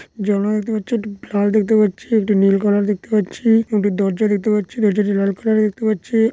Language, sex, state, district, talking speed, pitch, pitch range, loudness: Bengali, male, West Bengal, Dakshin Dinajpur, 220 wpm, 210 Hz, 205-220 Hz, -18 LUFS